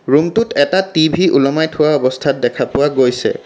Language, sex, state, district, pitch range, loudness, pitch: Assamese, male, Assam, Kamrup Metropolitan, 135-160 Hz, -14 LUFS, 145 Hz